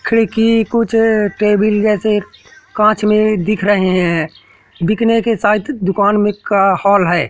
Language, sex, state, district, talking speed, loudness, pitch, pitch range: Hindi, male, Madhya Pradesh, Katni, 140 wpm, -14 LUFS, 210 Hz, 200-225 Hz